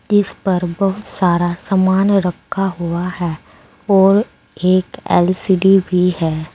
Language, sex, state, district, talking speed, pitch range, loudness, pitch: Hindi, female, Uttar Pradesh, Saharanpur, 120 wpm, 175-195 Hz, -16 LUFS, 185 Hz